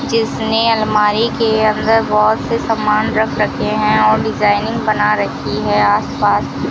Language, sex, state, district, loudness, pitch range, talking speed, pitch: Hindi, female, Rajasthan, Bikaner, -14 LUFS, 210-225 Hz, 145 wpm, 220 Hz